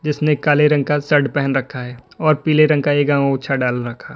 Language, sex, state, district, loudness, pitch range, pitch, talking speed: Hindi, male, Uttar Pradesh, Lalitpur, -17 LUFS, 135-150 Hz, 145 Hz, 230 wpm